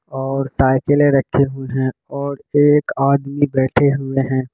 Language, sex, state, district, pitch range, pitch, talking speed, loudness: Hindi, male, Bihar, Kishanganj, 130-140 Hz, 135 Hz, 145 wpm, -17 LUFS